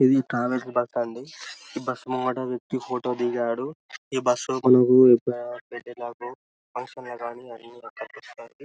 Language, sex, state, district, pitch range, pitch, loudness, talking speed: Telugu, male, Telangana, Karimnagar, 120-130 Hz, 125 Hz, -24 LUFS, 105 wpm